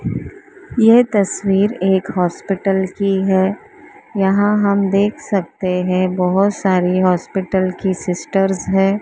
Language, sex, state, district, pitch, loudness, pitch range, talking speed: Hindi, female, Maharashtra, Mumbai Suburban, 195 Hz, -16 LUFS, 185-205 Hz, 115 wpm